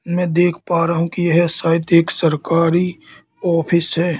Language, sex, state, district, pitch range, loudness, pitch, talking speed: Hindi, male, Madhya Pradesh, Katni, 165-175 Hz, -17 LUFS, 170 Hz, 170 wpm